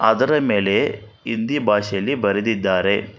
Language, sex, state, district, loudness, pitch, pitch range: Kannada, male, Karnataka, Bangalore, -19 LUFS, 105 Hz, 100-115 Hz